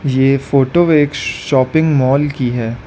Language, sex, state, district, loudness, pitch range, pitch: Hindi, male, Arunachal Pradesh, Lower Dibang Valley, -14 LUFS, 130-145 Hz, 135 Hz